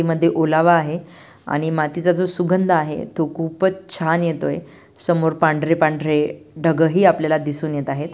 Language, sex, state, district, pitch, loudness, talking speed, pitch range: Marathi, female, Maharashtra, Dhule, 160 Hz, -19 LUFS, 145 wpm, 155-170 Hz